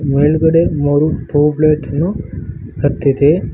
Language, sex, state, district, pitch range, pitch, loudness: Kannada, male, Karnataka, Koppal, 145-155 Hz, 150 Hz, -14 LUFS